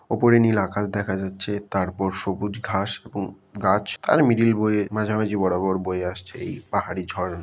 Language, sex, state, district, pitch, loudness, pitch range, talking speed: Bengali, male, West Bengal, Jalpaiguri, 100 Hz, -23 LUFS, 95-105 Hz, 160 wpm